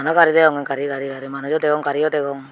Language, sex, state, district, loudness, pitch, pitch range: Chakma, female, Tripura, Unakoti, -19 LUFS, 145 Hz, 140-155 Hz